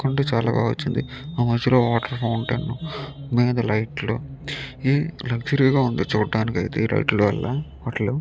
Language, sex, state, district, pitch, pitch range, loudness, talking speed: Telugu, male, Andhra Pradesh, Chittoor, 125 Hz, 115-140 Hz, -23 LUFS, 155 wpm